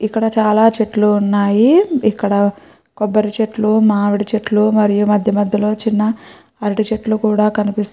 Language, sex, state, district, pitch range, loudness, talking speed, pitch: Telugu, female, Andhra Pradesh, Srikakulam, 210-220 Hz, -15 LUFS, 135 wpm, 215 Hz